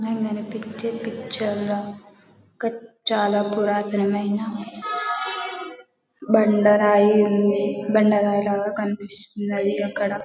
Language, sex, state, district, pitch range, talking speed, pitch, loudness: Telugu, female, Telangana, Karimnagar, 205-220 Hz, 90 wpm, 205 Hz, -22 LUFS